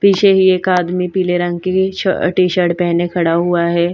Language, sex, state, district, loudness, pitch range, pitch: Hindi, female, Bihar, Patna, -14 LUFS, 175-185 Hz, 180 Hz